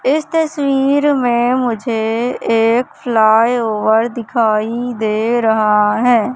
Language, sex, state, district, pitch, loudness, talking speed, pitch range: Hindi, male, Madhya Pradesh, Katni, 235 Hz, -15 LUFS, 95 wpm, 220-250 Hz